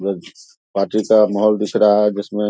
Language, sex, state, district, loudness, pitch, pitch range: Hindi, male, Bihar, Saharsa, -16 LUFS, 105 Hz, 100-105 Hz